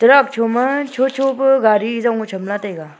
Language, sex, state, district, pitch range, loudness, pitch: Wancho, female, Arunachal Pradesh, Longding, 210-270 Hz, -16 LUFS, 235 Hz